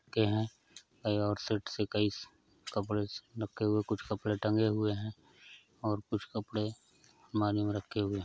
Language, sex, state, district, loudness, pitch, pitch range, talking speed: Hindi, male, Uttar Pradesh, Varanasi, -34 LUFS, 105 Hz, 105-110 Hz, 160 wpm